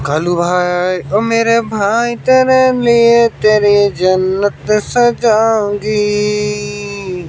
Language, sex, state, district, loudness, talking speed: Hindi, male, Haryana, Jhajjar, -13 LUFS, 80 wpm